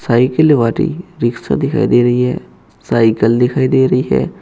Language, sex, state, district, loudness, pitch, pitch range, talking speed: Hindi, male, Uttar Pradesh, Saharanpur, -14 LUFS, 125 Hz, 120-130 Hz, 165 wpm